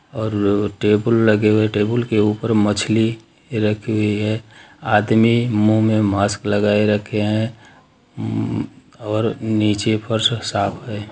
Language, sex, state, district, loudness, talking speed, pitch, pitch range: Hindi, male, Bihar, Darbhanga, -18 LUFS, 130 wpm, 110 Hz, 105-110 Hz